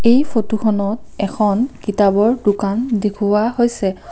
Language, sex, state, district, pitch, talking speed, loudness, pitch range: Assamese, female, Assam, Kamrup Metropolitan, 215 Hz, 100 wpm, -17 LUFS, 205-235 Hz